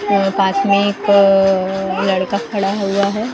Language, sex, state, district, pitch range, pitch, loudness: Hindi, female, Maharashtra, Gondia, 195-200 Hz, 195 Hz, -15 LUFS